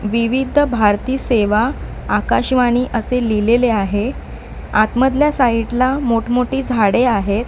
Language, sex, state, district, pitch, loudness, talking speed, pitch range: Marathi, female, Maharashtra, Mumbai Suburban, 240 Hz, -16 LUFS, 105 wpm, 220-255 Hz